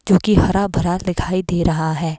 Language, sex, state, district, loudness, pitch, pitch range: Hindi, female, Himachal Pradesh, Shimla, -18 LUFS, 180 Hz, 165-190 Hz